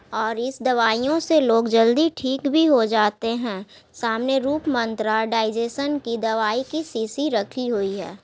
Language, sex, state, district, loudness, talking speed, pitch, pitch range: Hindi, female, Bihar, Gaya, -21 LUFS, 160 wpm, 230 Hz, 220-275 Hz